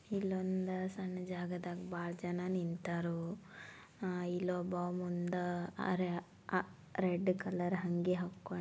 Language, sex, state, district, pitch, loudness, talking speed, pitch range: Kannada, female, Karnataka, Belgaum, 180 Hz, -39 LUFS, 110 wpm, 175-185 Hz